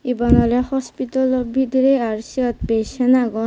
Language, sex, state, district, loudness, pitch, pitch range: Chakma, female, Tripura, West Tripura, -18 LUFS, 250 Hz, 235-260 Hz